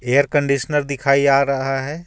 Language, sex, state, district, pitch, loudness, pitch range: Hindi, male, Jharkhand, Ranchi, 140 Hz, -18 LUFS, 135-145 Hz